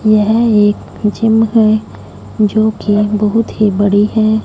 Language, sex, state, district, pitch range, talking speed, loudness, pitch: Hindi, female, Punjab, Fazilka, 210-220 Hz, 120 wpm, -12 LUFS, 215 Hz